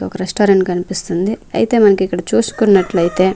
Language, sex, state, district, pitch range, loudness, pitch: Telugu, female, Andhra Pradesh, Manyam, 180-205 Hz, -14 LUFS, 190 Hz